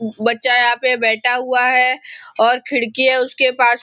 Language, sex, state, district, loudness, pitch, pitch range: Hindi, male, Maharashtra, Nagpur, -14 LUFS, 250 Hz, 240-255 Hz